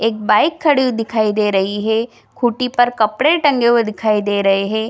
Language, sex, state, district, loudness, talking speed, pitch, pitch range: Hindi, female, Bihar, Jamui, -16 LUFS, 210 wpm, 225 Hz, 215-245 Hz